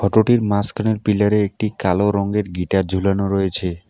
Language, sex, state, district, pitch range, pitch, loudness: Bengali, male, West Bengal, Alipurduar, 95-105 Hz, 100 Hz, -19 LUFS